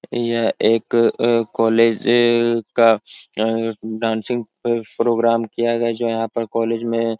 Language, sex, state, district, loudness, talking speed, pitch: Hindi, male, Uttar Pradesh, Etah, -19 LUFS, 165 wpm, 115 Hz